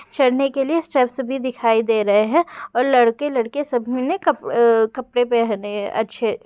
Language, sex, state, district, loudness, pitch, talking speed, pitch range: Hindi, female, Bihar, Darbhanga, -19 LUFS, 245 Hz, 175 wpm, 225-270 Hz